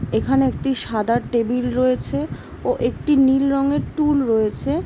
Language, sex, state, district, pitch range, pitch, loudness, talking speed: Bengali, female, West Bengal, Jhargram, 220-275 Hz, 250 Hz, -20 LUFS, 135 wpm